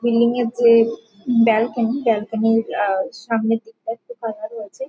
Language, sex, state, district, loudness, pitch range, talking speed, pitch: Bengali, female, West Bengal, Jhargram, -19 LUFS, 225-235 Hz, 160 wpm, 230 Hz